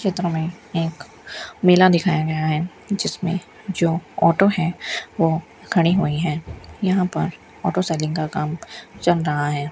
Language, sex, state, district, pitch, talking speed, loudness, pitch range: Hindi, female, Rajasthan, Bikaner, 170 Hz, 150 wpm, -21 LUFS, 160-180 Hz